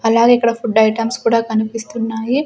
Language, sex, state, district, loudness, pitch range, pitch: Telugu, female, Andhra Pradesh, Sri Satya Sai, -16 LUFS, 225-235 Hz, 230 Hz